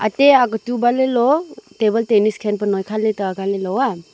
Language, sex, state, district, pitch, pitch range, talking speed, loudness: Wancho, female, Arunachal Pradesh, Longding, 220 Hz, 205-245 Hz, 175 wpm, -17 LUFS